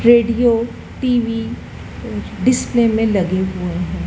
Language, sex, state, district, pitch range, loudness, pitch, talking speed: Hindi, female, Madhya Pradesh, Dhar, 185-240 Hz, -18 LUFS, 230 Hz, 105 wpm